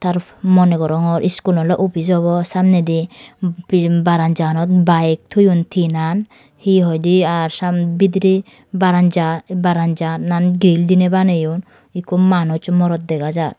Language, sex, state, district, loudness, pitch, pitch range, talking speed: Chakma, female, Tripura, Dhalai, -15 LUFS, 175 Hz, 165-185 Hz, 115 wpm